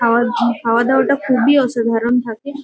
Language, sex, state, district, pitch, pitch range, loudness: Bengali, female, West Bengal, Kolkata, 240 Hz, 235-265 Hz, -15 LUFS